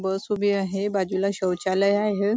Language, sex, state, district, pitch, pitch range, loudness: Marathi, female, Maharashtra, Nagpur, 195 Hz, 190-205 Hz, -24 LUFS